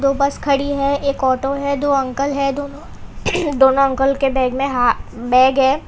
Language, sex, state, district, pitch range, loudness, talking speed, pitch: Hindi, female, Gujarat, Valsad, 265-280 Hz, -17 LUFS, 185 wpm, 275 Hz